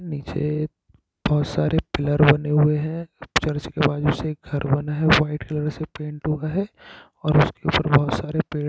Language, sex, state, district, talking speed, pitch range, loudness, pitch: Hindi, male, Jharkhand, Sahebganj, 180 wpm, 150-155 Hz, -22 LUFS, 150 Hz